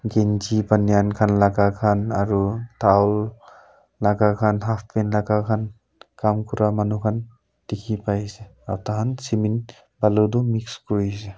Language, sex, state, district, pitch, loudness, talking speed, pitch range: Nagamese, male, Nagaland, Kohima, 105 Hz, -22 LUFS, 145 wpm, 105-110 Hz